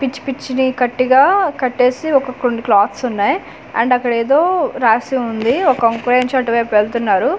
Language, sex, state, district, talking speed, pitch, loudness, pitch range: Telugu, female, Andhra Pradesh, Manyam, 130 wpm, 250 Hz, -15 LUFS, 235-265 Hz